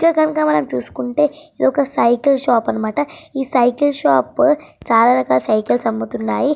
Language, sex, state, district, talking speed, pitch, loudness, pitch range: Telugu, female, Andhra Pradesh, Srikakulam, 165 wpm, 270 Hz, -17 LUFS, 220-300 Hz